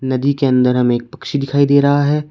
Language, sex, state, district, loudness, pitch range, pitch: Hindi, male, Uttar Pradesh, Shamli, -15 LUFS, 125-140 Hz, 140 Hz